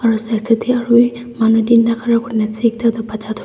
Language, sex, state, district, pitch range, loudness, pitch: Nagamese, female, Nagaland, Dimapur, 225-235 Hz, -15 LUFS, 230 Hz